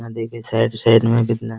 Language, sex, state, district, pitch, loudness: Hindi, male, Bihar, Araria, 115 Hz, -17 LUFS